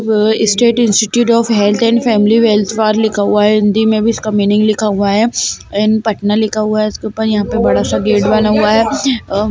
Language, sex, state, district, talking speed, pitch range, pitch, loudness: Kumaoni, female, Uttarakhand, Tehri Garhwal, 220 wpm, 210-220 Hz, 215 Hz, -12 LUFS